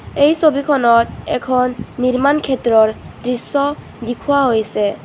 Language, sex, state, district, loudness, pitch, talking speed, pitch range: Assamese, female, Assam, Kamrup Metropolitan, -16 LUFS, 250 Hz, 95 wpm, 230-280 Hz